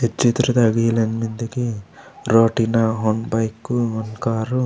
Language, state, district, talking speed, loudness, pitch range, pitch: Gondi, Chhattisgarh, Sukma, 155 wpm, -20 LUFS, 110-120 Hz, 115 Hz